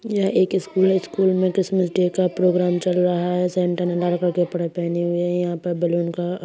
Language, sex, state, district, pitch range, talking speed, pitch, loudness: Hindi, female, Uttar Pradesh, Hamirpur, 175-185 Hz, 235 wpm, 180 Hz, -21 LUFS